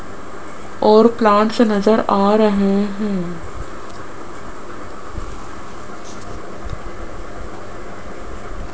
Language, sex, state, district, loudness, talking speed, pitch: Hindi, female, Rajasthan, Jaipur, -15 LUFS, 40 wpm, 200 Hz